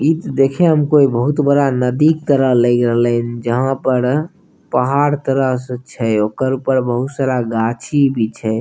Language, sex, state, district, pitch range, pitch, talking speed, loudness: Maithili, male, Bihar, Begusarai, 120-140 Hz, 130 Hz, 180 wpm, -16 LUFS